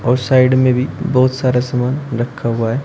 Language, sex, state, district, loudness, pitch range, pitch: Hindi, male, Uttar Pradesh, Shamli, -15 LUFS, 125-130 Hz, 130 Hz